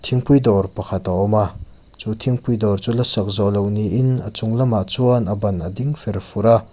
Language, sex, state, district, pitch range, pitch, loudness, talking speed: Mizo, male, Mizoram, Aizawl, 100-125 Hz, 105 Hz, -18 LUFS, 205 wpm